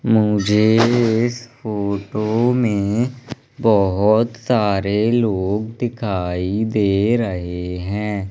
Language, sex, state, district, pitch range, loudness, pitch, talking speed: Hindi, male, Madhya Pradesh, Umaria, 100-115 Hz, -18 LUFS, 110 Hz, 80 wpm